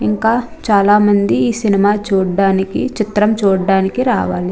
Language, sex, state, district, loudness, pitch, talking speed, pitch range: Telugu, female, Andhra Pradesh, Chittoor, -14 LUFS, 205 Hz, 130 wpm, 195-225 Hz